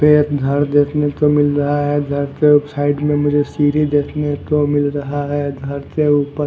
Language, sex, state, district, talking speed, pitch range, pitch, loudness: Hindi, male, Punjab, Fazilka, 205 wpm, 145-150 Hz, 145 Hz, -16 LUFS